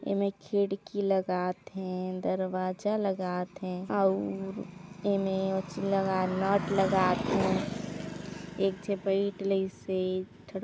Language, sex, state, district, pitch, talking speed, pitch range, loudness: Chhattisgarhi, female, Chhattisgarh, Sarguja, 190 Hz, 95 wpm, 185-195 Hz, -30 LUFS